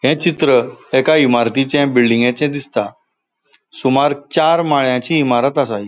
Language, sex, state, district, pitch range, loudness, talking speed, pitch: Konkani, male, Goa, North and South Goa, 125-150 Hz, -15 LUFS, 130 wpm, 140 Hz